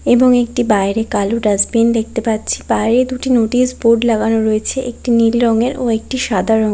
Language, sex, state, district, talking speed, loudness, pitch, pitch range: Bengali, female, West Bengal, Kolkata, 185 wpm, -15 LUFS, 230 Hz, 220-245 Hz